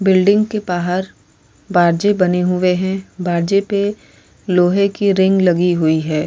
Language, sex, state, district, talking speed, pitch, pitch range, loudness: Hindi, female, Uttar Pradesh, Varanasi, 145 wpm, 185 Hz, 175-195 Hz, -16 LUFS